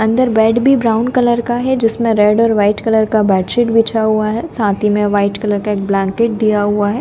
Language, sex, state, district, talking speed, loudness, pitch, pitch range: Hindi, female, Delhi, New Delhi, 230 wpm, -14 LUFS, 220 Hz, 205-230 Hz